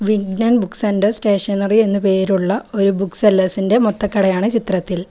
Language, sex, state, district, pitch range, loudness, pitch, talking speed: Malayalam, female, Kerala, Kollam, 195-215 Hz, -16 LUFS, 200 Hz, 140 wpm